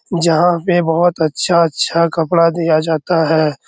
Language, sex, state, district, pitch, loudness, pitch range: Hindi, male, Bihar, Araria, 165 Hz, -14 LUFS, 160-175 Hz